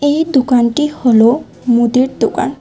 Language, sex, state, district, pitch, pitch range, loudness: Bengali, female, Tripura, West Tripura, 265 Hz, 240-290 Hz, -13 LUFS